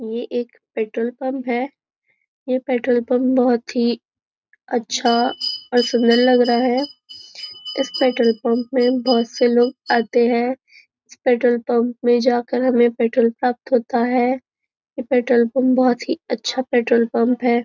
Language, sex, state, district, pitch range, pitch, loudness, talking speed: Hindi, female, Maharashtra, Nagpur, 240-255 Hz, 245 Hz, -19 LUFS, 150 wpm